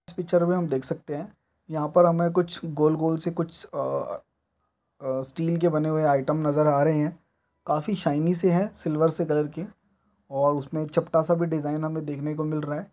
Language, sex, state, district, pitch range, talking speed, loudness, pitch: Hindi, male, Chhattisgarh, Korba, 150-170 Hz, 210 wpm, -25 LUFS, 160 Hz